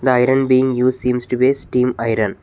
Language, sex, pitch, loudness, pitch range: English, male, 125 Hz, -17 LUFS, 125-130 Hz